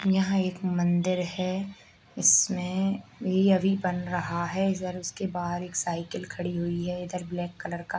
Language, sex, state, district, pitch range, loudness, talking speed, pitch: Hindi, male, Bihar, Bhagalpur, 175-190 Hz, -27 LUFS, 165 wpm, 180 Hz